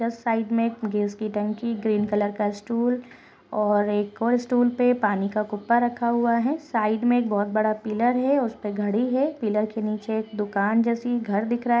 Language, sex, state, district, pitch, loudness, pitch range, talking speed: Hindi, female, Chhattisgarh, Rajnandgaon, 225 Hz, -24 LUFS, 210-240 Hz, 210 wpm